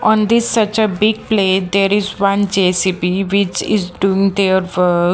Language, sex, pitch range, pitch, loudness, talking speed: English, female, 185-210 Hz, 195 Hz, -15 LUFS, 175 wpm